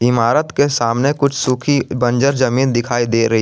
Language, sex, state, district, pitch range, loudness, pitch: Hindi, male, Jharkhand, Garhwa, 120-140 Hz, -16 LUFS, 130 Hz